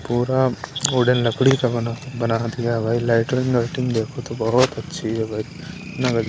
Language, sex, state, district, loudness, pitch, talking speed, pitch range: Hindi, male, Maharashtra, Washim, -21 LUFS, 120 Hz, 145 wpm, 115-130 Hz